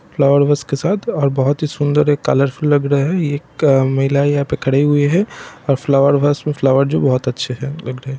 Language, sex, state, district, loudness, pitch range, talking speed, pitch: Hindi, male, Bihar, Supaul, -16 LUFS, 135-145 Hz, 240 wpm, 140 Hz